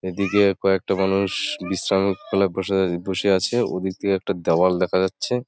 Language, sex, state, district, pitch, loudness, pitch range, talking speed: Bengali, male, West Bengal, Jalpaiguri, 95 Hz, -21 LUFS, 95-100 Hz, 130 wpm